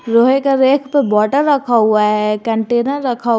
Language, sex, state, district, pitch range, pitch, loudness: Hindi, female, Jharkhand, Garhwa, 220-275 Hz, 240 Hz, -14 LUFS